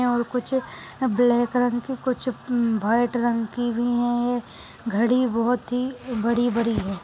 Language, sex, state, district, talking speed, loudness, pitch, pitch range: Hindi, female, Goa, North and South Goa, 155 wpm, -23 LUFS, 240 Hz, 235-250 Hz